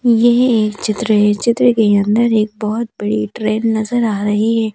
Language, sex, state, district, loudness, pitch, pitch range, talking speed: Hindi, female, Madhya Pradesh, Bhopal, -15 LUFS, 220 Hz, 210-235 Hz, 190 wpm